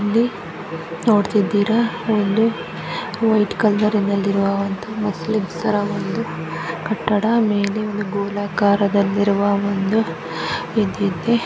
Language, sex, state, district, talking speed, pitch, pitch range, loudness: Kannada, female, Karnataka, Gulbarga, 85 wpm, 205 Hz, 195-215 Hz, -20 LUFS